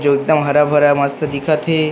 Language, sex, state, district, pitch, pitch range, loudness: Chhattisgarhi, male, Chhattisgarh, Rajnandgaon, 150 Hz, 145-155 Hz, -15 LUFS